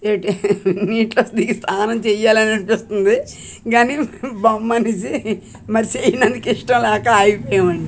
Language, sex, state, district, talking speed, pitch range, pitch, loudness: Telugu, female, Andhra Pradesh, Manyam, 100 wpm, 205-235 Hz, 220 Hz, -17 LUFS